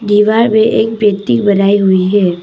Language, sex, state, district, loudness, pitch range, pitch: Hindi, female, Arunachal Pradesh, Papum Pare, -11 LUFS, 195-220 Hz, 205 Hz